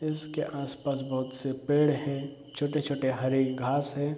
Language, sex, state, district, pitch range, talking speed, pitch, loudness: Hindi, male, Bihar, Darbhanga, 135-145 Hz, 145 wpm, 140 Hz, -30 LUFS